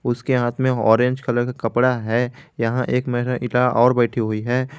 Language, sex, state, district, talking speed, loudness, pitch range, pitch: Hindi, male, Jharkhand, Garhwa, 190 wpm, -20 LUFS, 120-125 Hz, 125 Hz